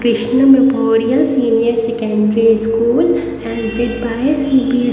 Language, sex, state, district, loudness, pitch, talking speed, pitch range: Hindi, female, Haryana, Rohtak, -14 LUFS, 235 Hz, 110 wpm, 230-260 Hz